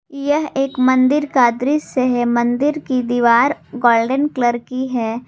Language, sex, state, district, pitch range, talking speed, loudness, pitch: Hindi, female, Jharkhand, Garhwa, 240-280 Hz, 145 wpm, -17 LUFS, 255 Hz